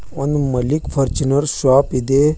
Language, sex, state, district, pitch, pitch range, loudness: Kannada, male, Karnataka, Bidar, 135 Hz, 130-145 Hz, -17 LUFS